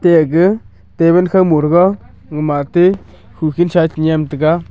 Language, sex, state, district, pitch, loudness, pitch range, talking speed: Wancho, male, Arunachal Pradesh, Longding, 165 Hz, -13 LUFS, 155-180 Hz, 130 wpm